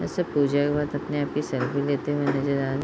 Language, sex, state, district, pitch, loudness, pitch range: Hindi, female, Bihar, Sitamarhi, 145 Hz, -25 LUFS, 140-145 Hz